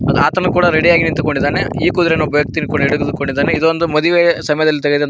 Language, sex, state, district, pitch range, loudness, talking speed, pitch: Kannada, male, Karnataka, Koppal, 145-170 Hz, -14 LUFS, 200 wpm, 155 Hz